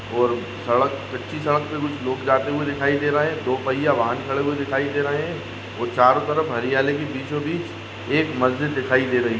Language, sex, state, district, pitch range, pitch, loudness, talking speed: Hindi, male, Maharashtra, Sindhudurg, 125-145 Hz, 135 Hz, -22 LUFS, 215 wpm